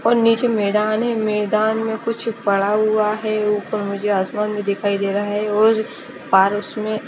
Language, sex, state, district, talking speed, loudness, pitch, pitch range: Hindi, female, Chandigarh, Chandigarh, 180 wpm, -19 LUFS, 210 Hz, 205-220 Hz